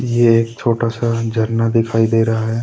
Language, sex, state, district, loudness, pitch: Hindi, male, Uttarakhand, Tehri Garhwal, -16 LUFS, 115 Hz